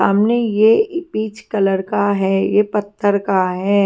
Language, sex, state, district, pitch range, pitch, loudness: Hindi, female, Haryana, Jhajjar, 195-215 Hz, 205 Hz, -17 LUFS